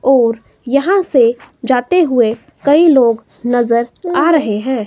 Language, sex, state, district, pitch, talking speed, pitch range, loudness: Hindi, female, Himachal Pradesh, Shimla, 250 Hz, 135 wpm, 235-300 Hz, -13 LUFS